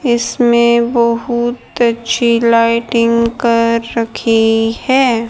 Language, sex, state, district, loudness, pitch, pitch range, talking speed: Hindi, female, Haryana, Charkhi Dadri, -13 LUFS, 235 Hz, 230-240 Hz, 80 wpm